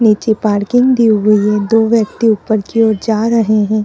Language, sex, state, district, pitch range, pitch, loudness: Hindi, female, Delhi, New Delhi, 210-225 Hz, 220 Hz, -12 LUFS